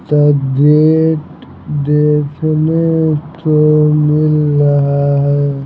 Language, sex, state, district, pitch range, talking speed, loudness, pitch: Hindi, male, Bihar, Patna, 145-155 Hz, 75 wpm, -12 LUFS, 150 Hz